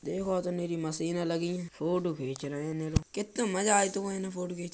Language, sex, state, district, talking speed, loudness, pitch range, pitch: Bundeli, male, Uttar Pradesh, Budaun, 230 wpm, -31 LUFS, 160-190 Hz, 175 Hz